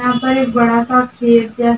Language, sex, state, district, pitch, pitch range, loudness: Hindi, female, Rajasthan, Churu, 245 Hz, 235-250 Hz, -13 LUFS